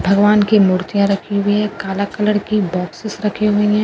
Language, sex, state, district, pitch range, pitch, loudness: Hindi, female, Bihar, Katihar, 200-210 Hz, 205 Hz, -16 LUFS